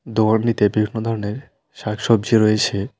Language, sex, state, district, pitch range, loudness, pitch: Bengali, male, West Bengal, Alipurduar, 105-115 Hz, -19 LUFS, 110 Hz